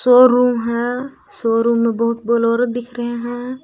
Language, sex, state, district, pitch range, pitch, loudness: Hindi, female, Jharkhand, Palamu, 230-245 Hz, 240 Hz, -17 LUFS